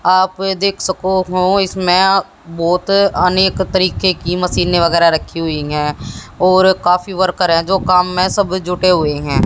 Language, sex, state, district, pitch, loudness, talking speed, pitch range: Hindi, female, Haryana, Jhajjar, 185 Hz, -14 LUFS, 160 wpm, 170-190 Hz